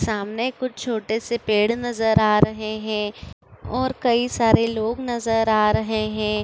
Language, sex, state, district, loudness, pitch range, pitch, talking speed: Hindi, female, Uttar Pradesh, Budaun, -21 LUFS, 215-235 Hz, 225 Hz, 160 wpm